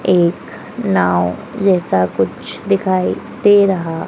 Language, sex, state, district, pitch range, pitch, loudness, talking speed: Hindi, female, Madhya Pradesh, Dhar, 165-195 Hz, 185 Hz, -16 LUFS, 105 wpm